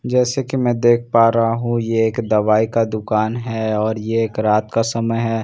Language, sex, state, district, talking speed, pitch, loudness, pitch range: Hindi, male, Bihar, Katihar, 220 wpm, 115 Hz, -18 LUFS, 110-115 Hz